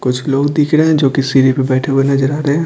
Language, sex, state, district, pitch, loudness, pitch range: Hindi, male, Bihar, Patna, 135 Hz, -13 LUFS, 135-150 Hz